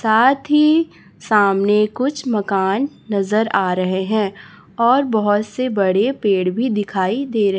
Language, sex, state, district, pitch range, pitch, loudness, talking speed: Hindi, female, Chhattisgarh, Raipur, 195-250 Hz, 210 Hz, -17 LUFS, 140 wpm